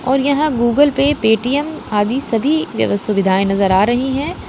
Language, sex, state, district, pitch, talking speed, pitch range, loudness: Hindi, female, Uttar Pradesh, Lalitpur, 255 Hz, 175 wpm, 210-285 Hz, -16 LUFS